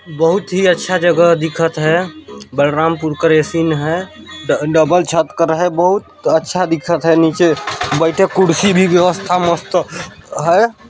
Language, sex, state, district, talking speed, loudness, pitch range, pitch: Chhattisgarhi, male, Chhattisgarh, Balrampur, 145 wpm, -14 LUFS, 160-180 Hz, 170 Hz